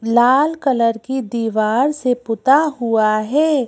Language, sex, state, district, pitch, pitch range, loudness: Hindi, female, Madhya Pradesh, Bhopal, 250 Hz, 225-275 Hz, -17 LUFS